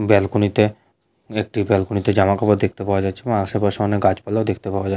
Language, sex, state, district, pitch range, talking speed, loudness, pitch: Bengali, male, West Bengal, Jhargram, 95-105 Hz, 215 wpm, -19 LUFS, 100 Hz